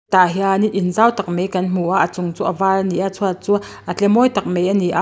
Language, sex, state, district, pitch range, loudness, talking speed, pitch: Mizo, female, Mizoram, Aizawl, 180-200 Hz, -18 LUFS, 300 wpm, 190 Hz